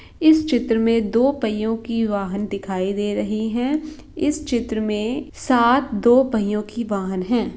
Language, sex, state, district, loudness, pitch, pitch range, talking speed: Hindi, female, Bihar, Saran, -20 LUFS, 230 Hz, 210-255 Hz, 160 wpm